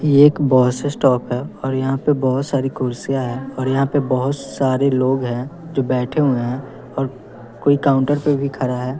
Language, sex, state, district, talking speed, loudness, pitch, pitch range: Hindi, male, Bihar, West Champaran, 200 wpm, -19 LUFS, 135 Hz, 130-140 Hz